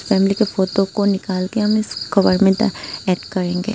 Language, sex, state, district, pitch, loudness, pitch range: Hindi, female, Tripura, Unakoti, 195 Hz, -18 LUFS, 185-210 Hz